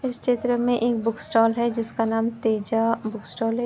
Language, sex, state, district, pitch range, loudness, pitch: Hindi, female, Uttar Pradesh, Jyotiba Phule Nagar, 225-240 Hz, -23 LUFS, 230 Hz